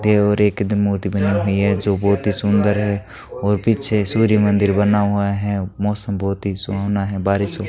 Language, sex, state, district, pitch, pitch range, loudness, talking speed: Hindi, male, Rajasthan, Bikaner, 100 Hz, 100-105 Hz, -18 LUFS, 210 wpm